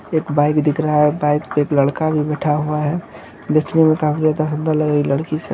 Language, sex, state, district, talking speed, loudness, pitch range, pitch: Hindi, male, Bihar, Kishanganj, 250 wpm, -17 LUFS, 150-155 Hz, 150 Hz